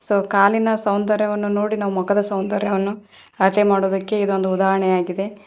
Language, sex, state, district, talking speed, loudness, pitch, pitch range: Kannada, female, Karnataka, Koppal, 120 wpm, -19 LUFS, 200 Hz, 195-210 Hz